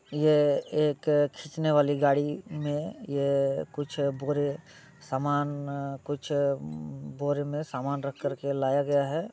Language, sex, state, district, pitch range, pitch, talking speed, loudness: Hindi, male, Bihar, Muzaffarpur, 140-150 Hz, 145 Hz, 110 wpm, -28 LUFS